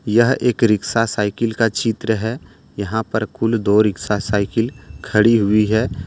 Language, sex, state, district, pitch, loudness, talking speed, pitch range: Hindi, male, Jharkhand, Deoghar, 110 Hz, -18 LUFS, 160 wpm, 105-115 Hz